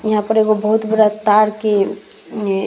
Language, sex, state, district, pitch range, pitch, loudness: Bhojpuri, female, Bihar, East Champaran, 210-215 Hz, 215 Hz, -16 LUFS